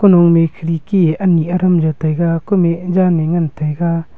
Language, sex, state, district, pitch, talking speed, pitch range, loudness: Wancho, male, Arunachal Pradesh, Longding, 170 Hz, 145 wpm, 160-180 Hz, -14 LUFS